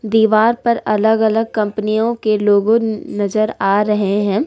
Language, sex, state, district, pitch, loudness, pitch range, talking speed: Hindi, female, Uttar Pradesh, Lalitpur, 215 Hz, -16 LUFS, 210-225 Hz, 150 wpm